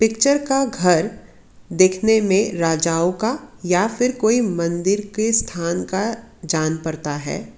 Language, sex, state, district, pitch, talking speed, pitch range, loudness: Hindi, female, Karnataka, Bangalore, 195 Hz, 135 wpm, 170-225 Hz, -19 LUFS